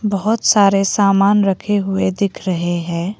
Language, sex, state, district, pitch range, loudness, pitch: Hindi, female, Assam, Kamrup Metropolitan, 190-205 Hz, -16 LUFS, 195 Hz